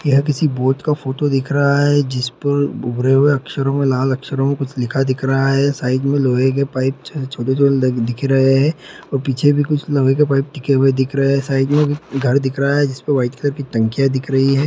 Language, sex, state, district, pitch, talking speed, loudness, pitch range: Hindi, male, Bihar, Lakhisarai, 135 Hz, 245 wpm, -17 LUFS, 130-140 Hz